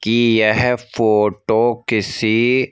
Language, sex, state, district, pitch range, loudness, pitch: Hindi, male, Madhya Pradesh, Bhopal, 110-120 Hz, -16 LUFS, 115 Hz